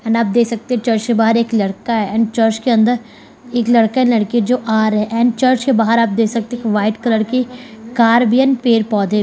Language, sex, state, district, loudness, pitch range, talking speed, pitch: Hindi, female, Bihar, Kishanganj, -15 LUFS, 220-240 Hz, 265 wpm, 230 Hz